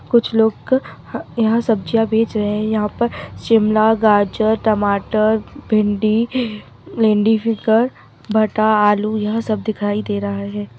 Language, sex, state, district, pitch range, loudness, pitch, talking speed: Chhattisgarhi, female, Chhattisgarh, Bilaspur, 210-225 Hz, -17 LUFS, 215 Hz, 130 wpm